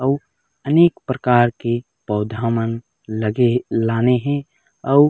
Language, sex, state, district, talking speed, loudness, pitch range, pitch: Chhattisgarhi, male, Chhattisgarh, Raigarh, 130 wpm, -19 LUFS, 115-135 Hz, 120 Hz